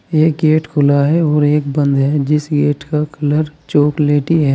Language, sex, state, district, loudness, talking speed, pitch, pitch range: Hindi, male, Uttar Pradesh, Saharanpur, -14 LUFS, 185 wpm, 150 Hz, 145-155 Hz